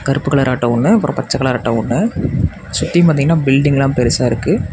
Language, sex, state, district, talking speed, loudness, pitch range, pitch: Tamil, male, Tamil Nadu, Namakkal, 175 wpm, -15 LUFS, 125-145 Hz, 135 Hz